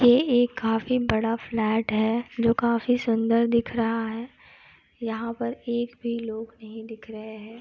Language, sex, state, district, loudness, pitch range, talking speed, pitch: Hindi, female, Uttar Pradesh, Etah, -25 LUFS, 225-240 Hz, 165 wpm, 230 Hz